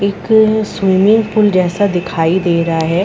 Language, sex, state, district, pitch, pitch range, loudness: Hindi, female, Chhattisgarh, Rajnandgaon, 190 Hz, 175-210 Hz, -13 LUFS